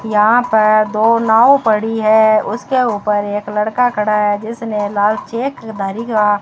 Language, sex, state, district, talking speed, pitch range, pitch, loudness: Hindi, female, Rajasthan, Bikaner, 170 wpm, 210-230 Hz, 215 Hz, -14 LUFS